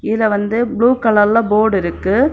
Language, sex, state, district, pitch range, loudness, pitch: Tamil, female, Tamil Nadu, Kanyakumari, 205-235 Hz, -14 LUFS, 220 Hz